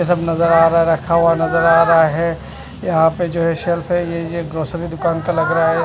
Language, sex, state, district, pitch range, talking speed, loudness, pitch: Hindi, male, Punjab, Fazilka, 165-170 Hz, 255 wpm, -16 LUFS, 165 Hz